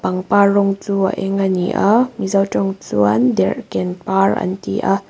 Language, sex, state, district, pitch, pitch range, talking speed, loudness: Mizo, female, Mizoram, Aizawl, 195 Hz, 185-200 Hz, 175 wpm, -17 LUFS